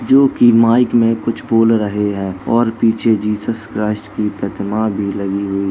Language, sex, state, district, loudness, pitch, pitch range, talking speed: Hindi, male, Uttar Pradesh, Jalaun, -15 LUFS, 110 Hz, 100-115 Hz, 170 wpm